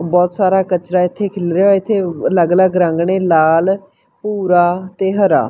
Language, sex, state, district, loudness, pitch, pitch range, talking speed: Punjabi, female, Punjab, Fazilka, -14 LUFS, 185 Hz, 175-195 Hz, 165 wpm